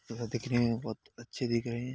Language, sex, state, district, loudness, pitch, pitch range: Hindi, male, Uttar Pradesh, Hamirpur, -33 LUFS, 120 Hz, 115-120 Hz